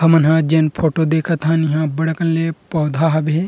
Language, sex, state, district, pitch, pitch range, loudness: Chhattisgarhi, male, Chhattisgarh, Rajnandgaon, 160 Hz, 155-165 Hz, -17 LUFS